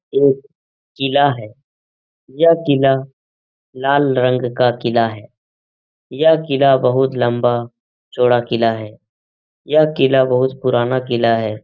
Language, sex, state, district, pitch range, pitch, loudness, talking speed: Hindi, male, Uttar Pradesh, Etah, 110-135 Hz, 125 Hz, -16 LUFS, 120 wpm